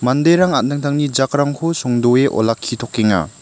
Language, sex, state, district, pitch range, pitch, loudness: Garo, male, Meghalaya, West Garo Hills, 120-145 Hz, 135 Hz, -16 LUFS